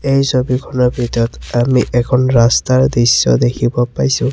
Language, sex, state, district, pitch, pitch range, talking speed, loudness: Assamese, male, Assam, Sonitpur, 125 Hz, 120-130 Hz, 125 wpm, -14 LUFS